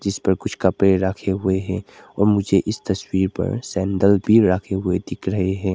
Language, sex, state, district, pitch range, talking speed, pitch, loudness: Hindi, male, Arunachal Pradesh, Lower Dibang Valley, 95-100 Hz, 200 wpm, 95 Hz, -20 LUFS